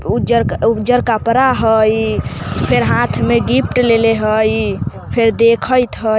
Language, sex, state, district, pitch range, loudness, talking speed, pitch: Bajjika, female, Bihar, Vaishali, 220-235 Hz, -14 LUFS, 115 wpm, 225 Hz